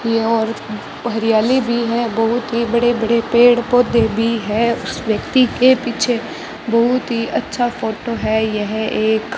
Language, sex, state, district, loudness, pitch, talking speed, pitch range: Hindi, female, Rajasthan, Bikaner, -17 LUFS, 230 Hz, 160 wpm, 220-240 Hz